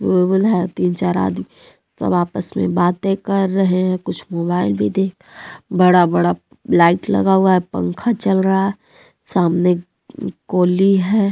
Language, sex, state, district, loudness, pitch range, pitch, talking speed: Hindi, female, Jharkhand, Deoghar, -17 LUFS, 175-195 Hz, 185 Hz, 145 wpm